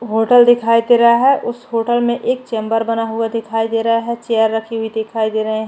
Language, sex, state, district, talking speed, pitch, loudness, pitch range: Hindi, female, Chhattisgarh, Bastar, 235 wpm, 230 Hz, -15 LUFS, 225-240 Hz